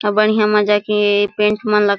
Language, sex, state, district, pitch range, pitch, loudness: Surgujia, female, Chhattisgarh, Sarguja, 205-210 Hz, 210 Hz, -15 LUFS